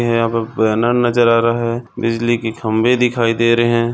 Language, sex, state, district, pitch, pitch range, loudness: Hindi, male, Maharashtra, Chandrapur, 115 Hz, 115-120 Hz, -16 LUFS